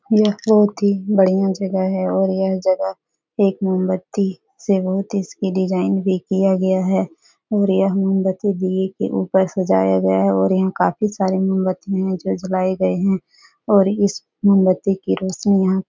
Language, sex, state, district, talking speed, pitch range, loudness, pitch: Hindi, female, Bihar, Supaul, 175 wpm, 185-195 Hz, -18 LUFS, 190 Hz